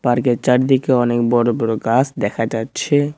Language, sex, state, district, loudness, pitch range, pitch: Bengali, male, West Bengal, Cooch Behar, -17 LUFS, 115-130 Hz, 120 Hz